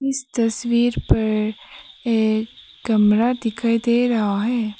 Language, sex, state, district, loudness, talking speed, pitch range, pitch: Hindi, female, Arunachal Pradesh, Papum Pare, -20 LUFS, 115 wpm, 215-240 Hz, 230 Hz